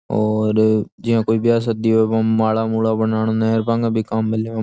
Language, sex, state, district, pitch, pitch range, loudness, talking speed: Rajasthani, male, Rajasthan, Churu, 110 Hz, 110-115 Hz, -18 LUFS, 220 wpm